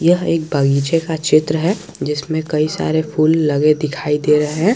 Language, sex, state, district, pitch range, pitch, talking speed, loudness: Hindi, male, Jharkhand, Garhwa, 150-160 Hz, 155 Hz, 190 wpm, -16 LUFS